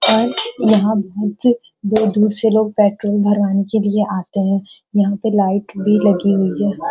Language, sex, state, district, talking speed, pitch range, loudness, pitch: Hindi, female, Uttar Pradesh, Gorakhpur, 175 wpm, 200-215 Hz, -16 LUFS, 205 Hz